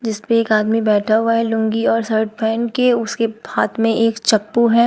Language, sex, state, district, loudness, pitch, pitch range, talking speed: Hindi, female, Uttar Pradesh, Shamli, -17 LUFS, 225 Hz, 220-230 Hz, 220 wpm